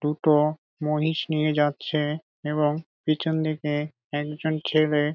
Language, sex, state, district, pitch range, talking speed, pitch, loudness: Bengali, male, West Bengal, Dakshin Dinajpur, 150-155 Hz, 105 wpm, 150 Hz, -25 LUFS